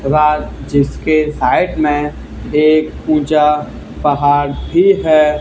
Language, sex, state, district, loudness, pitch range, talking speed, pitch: Hindi, male, Haryana, Charkhi Dadri, -14 LUFS, 145-155 Hz, 100 wpm, 150 Hz